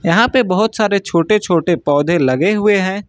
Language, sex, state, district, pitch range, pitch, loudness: Hindi, male, Uttar Pradesh, Lucknow, 170-210 Hz, 195 Hz, -14 LUFS